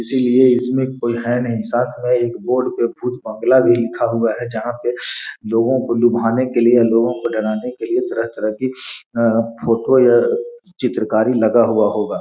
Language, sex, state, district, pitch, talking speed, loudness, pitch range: Hindi, male, Bihar, Gopalganj, 120 Hz, 180 wpm, -17 LUFS, 115-125 Hz